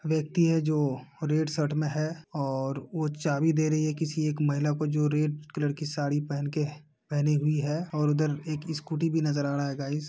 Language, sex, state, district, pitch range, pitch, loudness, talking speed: Hindi, male, Uttar Pradesh, Deoria, 145-155 Hz, 150 Hz, -28 LUFS, 225 wpm